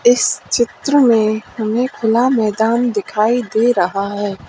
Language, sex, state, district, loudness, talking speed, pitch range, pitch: Hindi, female, Uttar Pradesh, Lalitpur, -16 LUFS, 135 wpm, 215-245 Hz, 225 Hz